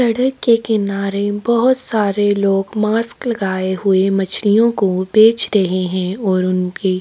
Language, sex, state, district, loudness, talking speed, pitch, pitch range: Hindi, female, Chhattisgarh, Kabirdham, -16 LUFS, 130 wpm, 205 Hz, 190-225 Hz